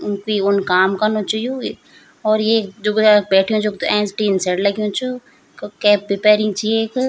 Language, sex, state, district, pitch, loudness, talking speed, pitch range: Garhwali, female, Uttarakhand, Tehri Garhwal, 210 Hz, -17 LUFS, 205 wpm, 200-220 Hz